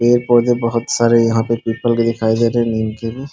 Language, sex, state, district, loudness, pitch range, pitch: Hindi, male, Bihar, Muzaffarpur, -16 LUFS, 115-120 Hz, 115 Hz